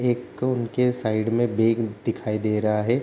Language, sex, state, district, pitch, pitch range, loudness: Hindi, male, Bihar, Kishanganj, 115 Hz, 110-125 Hz, -24 LUFS